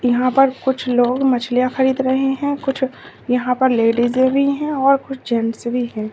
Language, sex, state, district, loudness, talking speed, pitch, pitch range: Hindi, female, Uttar Pradesh, Lalitpur, -18 LUFS, 185 wpm, 260 Hz, 245-270 Hz